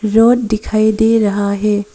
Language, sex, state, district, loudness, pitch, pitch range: Hindi, female, Arunachal Pradesh, Papum Pare, -13 LUFS, 215 Hz, 205-225 Hz